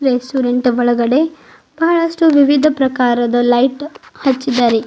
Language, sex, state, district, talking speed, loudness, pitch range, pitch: Kannada, female, Karnataka, Bidar, 85 wpm, -14 LUFS, 245-295 Hz, 260 Hz